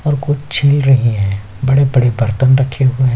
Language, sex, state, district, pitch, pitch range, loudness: Hindi, male, Chhattisgarh, Korba, 130 Hz, 120-140 Hz, -13 LUFS